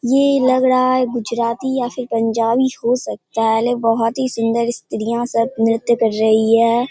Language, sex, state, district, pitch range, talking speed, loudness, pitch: Hindi, female, Bihar, Purnia, 230-255 Hz, 180 wpm, -17 LUFS, 235 Hz